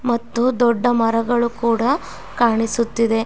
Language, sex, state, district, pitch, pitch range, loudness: Kannada, female, Karnataka, Mysore, 235 Hz, 230-240 Hz, -18 LUFS